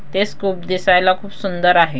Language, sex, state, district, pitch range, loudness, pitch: Marathi, female, Maharashtra, Dhule, 180-195 Hz, -17 LUFS, 185 Hz